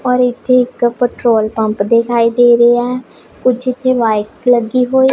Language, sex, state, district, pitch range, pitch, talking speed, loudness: Punjabi, female, Punjab, Pathankot, 230-250 Hz, 245 Hz, 165 wpm, -13 LUFS